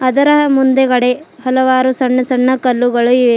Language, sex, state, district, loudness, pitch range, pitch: Kannada, female, Karnataka, Bidar, -12 LUFS, 250-260 Hz, 255 Hz